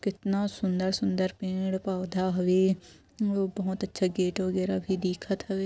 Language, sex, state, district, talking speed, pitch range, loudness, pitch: Hindi, female, Chhattisgarh, Korba, 115 wpm, 185-195 Hz, -29 LUFS, 190 Hz